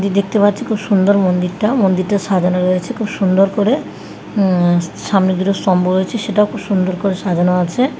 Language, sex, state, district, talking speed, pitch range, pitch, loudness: Bengali, female, West Bengal, Dakshin Dinajpur, 170 wpm, 185-210 Hz, 195 Hz, -15 LUFS